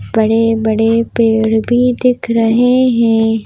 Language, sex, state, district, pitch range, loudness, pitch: Hindi, female, Madhya Pradesh, Bhopal, 220-240 Hz, -12 LUFS, 225 Hz